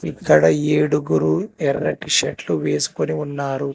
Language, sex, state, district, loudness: Telugu, male, Telangana, Hyderabad, -19 LUFS